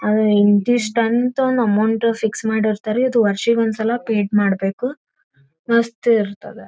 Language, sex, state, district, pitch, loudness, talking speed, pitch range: Kannada, female, Karnataka, Gulbarga, 225 Hz, -18 LUFS, 125 wpm, 210-235 Hz